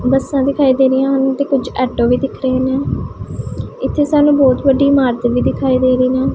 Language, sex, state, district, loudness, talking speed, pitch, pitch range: Punjabi, female, Punjab, Pathankot, -14 LUFS, 210 wpm, 265 Hz, 255-275 Hz